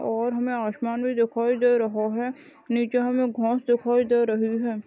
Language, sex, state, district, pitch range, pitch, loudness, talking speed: Hindi, female, Chhattisgarh, Balrampur, 230-245 Hz, 235 Hz, -24 LUFS, 185 wpm